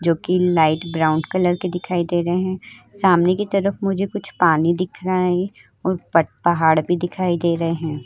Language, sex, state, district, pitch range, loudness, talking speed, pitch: Hindi, female, Uttar Pradesh, Hamirpur, 170-185 Hz, -19 LUFS, 200 wpm, 175 Hz